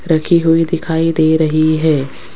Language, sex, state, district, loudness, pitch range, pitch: Hindi, female, Rajasthan, Jaipur, -13 LUFS, 155-165 Hz, 160 Hz